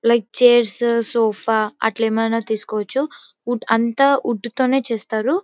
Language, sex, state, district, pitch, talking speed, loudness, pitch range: Telugu, female, Karnataka, Bellary, 230 Hz, 120 wpm, -18 LUFS, 220-245 Hz